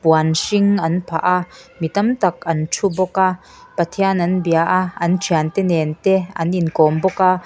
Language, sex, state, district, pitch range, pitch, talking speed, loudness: Mizo, female, Mizoram, Aizawl, 165-190 Hz, 180 Hz, 195 wpm, -18 LUFS